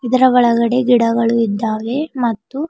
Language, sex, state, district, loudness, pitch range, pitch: Kannada, female, Karnataka, Bidar, -15 LUFS, 230-255 Hz, 240 Hz